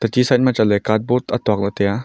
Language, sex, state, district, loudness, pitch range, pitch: Wancho, male, Arunachal Pradesh, Longding, -17 LUFS, 105-125 Hz, 115 Hz